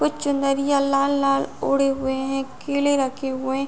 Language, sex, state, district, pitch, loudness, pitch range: Hindi, female, Uttar Pradesh, Muzaffarnagar, 275 Hz, -22 LUFS, 270-280 Hz